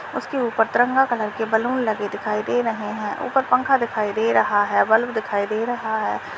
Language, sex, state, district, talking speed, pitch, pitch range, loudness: Hindi, male, Rajasthan, Churu, 205 wpm, 225 Hz, 215-245 Hz, -21 LUFS